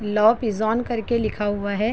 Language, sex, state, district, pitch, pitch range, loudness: Hindi, female, Chhattisgarh, Bilaspur, 220 Hz, 210-230 Hz, -22 LUFS